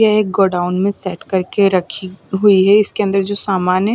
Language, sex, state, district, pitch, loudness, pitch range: Hindi, female, Bihar, Kaimur, 195 Hz, -15 LUFS, 185-205 Hz